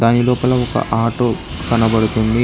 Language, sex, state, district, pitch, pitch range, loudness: Telugu, male, Telangana, Hyderabad, 115 Hz, 115-125 Hz, -16 LUFS